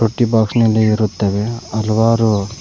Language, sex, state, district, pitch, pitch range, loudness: Kannada, male, Karnataka, Koppal, 110 Hz, 105-115 Hz, -15 LUFS